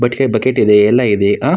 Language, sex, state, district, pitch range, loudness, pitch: Kannada, male, Karnataka, Mysore, 105-130 Hz, -12 LUFS, 110 Hz